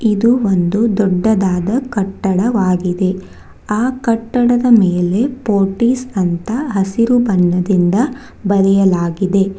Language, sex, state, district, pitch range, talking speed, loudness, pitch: Kannada, female, Karnataka, Bangalore, 190-235 Hz, 75 wpm, -15 LUFS, 200 Hz